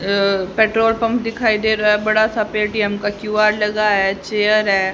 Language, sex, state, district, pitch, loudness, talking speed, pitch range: Hindi, female, Haryana, Rohtak, 210 Hz, -17 LUFS, 205 wpm, 205-220 Hz